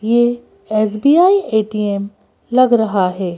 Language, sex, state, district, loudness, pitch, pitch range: Hindi, female, Madhya Pradesh, Bhopal, -15 LUFS, 220 Hz, 205-240 Hz